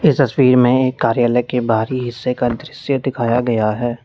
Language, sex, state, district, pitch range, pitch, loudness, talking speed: Hindi, male, Uttar Pradesh, Lalitpur, 120-130 Hz, 125 Hz, -16 LUFS, 175 wpm